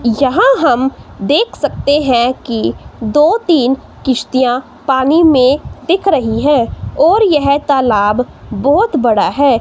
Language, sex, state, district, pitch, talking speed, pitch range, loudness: Hindi, female, Himachal Pradesh, Shimla, 265 Hz, 125 wpm, 245-295 Hz, -12 LUFS